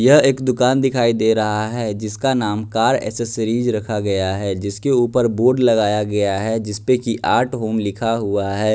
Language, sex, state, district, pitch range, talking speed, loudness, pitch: Hindi, male, Bihar, West Champaran, 105-125 Hz, 185 wpm, -18 LUFS, 110 Hz